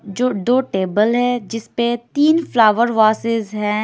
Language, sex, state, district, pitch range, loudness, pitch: Hindi, female, Bihar, Patna, 215-245 Hz, -17 LUFS, 230 Hz